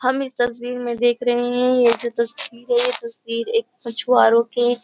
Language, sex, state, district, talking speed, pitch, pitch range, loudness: Hindi, female, Uttar Pradesh, Jyotiba Phule Nagar, 210 wpm, 245 Hz, 235-255 Hz, -19 LUFS